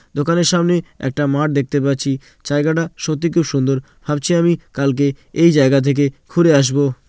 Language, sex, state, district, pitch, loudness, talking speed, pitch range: Bengali, male, West Bengal, Jalpaiguri, 145 Hz, -17 LUFS, 170 wpm, 140-165 Hz